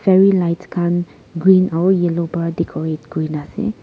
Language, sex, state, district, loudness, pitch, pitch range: Nagamese, female, Nagaland, Kohima, -17 LUFS, 175 Hz, 165-185 Hz